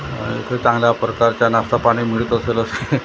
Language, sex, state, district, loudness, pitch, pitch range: Marathi, male, Maharashtra, Gondia, -18 LUFS, 115 Hz, 115-120 Hz